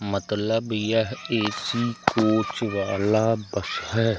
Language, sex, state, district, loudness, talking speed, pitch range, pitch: Hindi, male, Madhya Pradesh, Umaria, -24 LUFS, 100 wpm, 105-115 Hz, 110 Hz